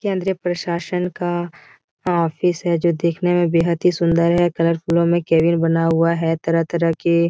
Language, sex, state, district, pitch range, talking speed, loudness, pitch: Hindi, female, Bihar, Jahanabad, 165-175 Hz, 190 wpm, -19 LUFS, 170 Hz